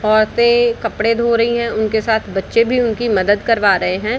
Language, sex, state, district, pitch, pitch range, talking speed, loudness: Hindi, female, Bihar, Darbhanga, 225 Hz, 215-235 Hz, 200 wpm, -15 LUFS